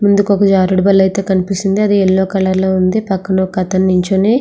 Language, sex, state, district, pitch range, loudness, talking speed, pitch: Telugu, female, Andhra Pradesh, Srikakulam, 185-200 Hz, -13 LUFS, 165 wpm, 190 Hz